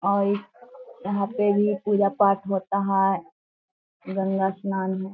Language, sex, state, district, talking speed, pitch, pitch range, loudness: Hindi, female, Bihar, Gaya, 130 wpm, 200 Hz, 195-205 Hz, -24 LUFS